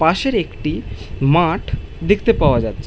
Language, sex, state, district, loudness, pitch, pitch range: Bengali, male, West Bengal, Malda, -18 LUFS, 150 Hz, 115-175 Hz